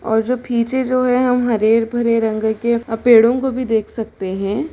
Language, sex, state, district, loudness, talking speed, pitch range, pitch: Hindi, female, Bihar, Gopalganj, -17 LUFS, 215 wpm, 220-250 Hz, 230 Hz